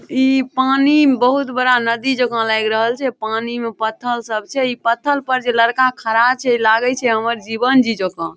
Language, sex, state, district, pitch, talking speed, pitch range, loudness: Maithili, female, Bihar, Madhepura, 240 Hz, 210 wpm, 225-260 Hz, -16 LUFS